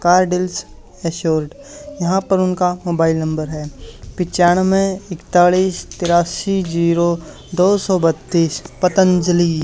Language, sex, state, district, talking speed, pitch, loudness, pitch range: Hindi, male, Haryana, Charkhi Dadri, 100 wpm, 175 Hz, -17 LUFS, 165-185 Hz